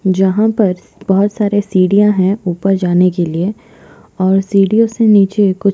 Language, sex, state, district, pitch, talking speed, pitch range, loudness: Hindi, female, Chhattisgarh, Bastar, 195 Hz, 155 wpm, 185-210 Hz, -13 LUFS